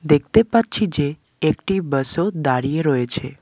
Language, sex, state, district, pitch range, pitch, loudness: Bengali, male, West Bengal, Alipurduar, 140-195 Hz, 155 Hz, -19 LUFS